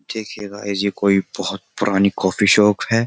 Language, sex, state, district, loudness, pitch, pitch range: Hindi, male, Uttar Pradesh, Jyotiba Phule Nagar, -18 LUFS, 100 Hz, 100-105 Hz